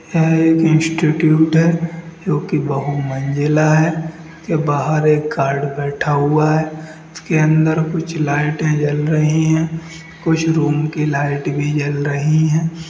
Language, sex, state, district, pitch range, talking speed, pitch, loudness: Hindi, female, Bihar, Sitamarhi, 150-160 Hz, 140 wpm, 155 Hz, -16 LUFS